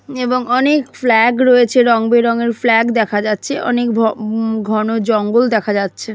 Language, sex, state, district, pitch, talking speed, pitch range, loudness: Bengali, female, West Bengal, Jalpaiguri, 230 Hz, 145 wpm, 220-245 Hz, -14 LUFS